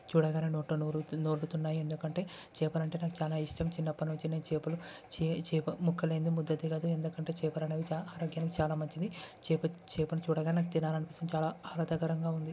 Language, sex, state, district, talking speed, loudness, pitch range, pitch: Telugu, male, Karnataka, Gulbarga, 155 wpm, -35 LUFS, 155-165 Hz, 160 Hz